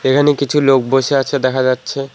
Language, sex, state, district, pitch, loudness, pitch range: Bengali, male, West Bengal, Alipurduar, 135 Hz, -14 LUFS, 130-140 Hz